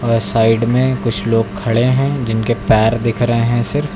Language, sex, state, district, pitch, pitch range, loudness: Hindi, male, Uttar Pradesh, Lucknow, 115 Hz, 115-120 Hz, -15 LUFS